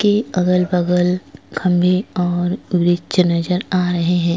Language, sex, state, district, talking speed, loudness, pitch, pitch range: Hindi, female, Goa, North and South Goa, 135 wpm, -17 LUFS, 180 Hz, 175-185 Hz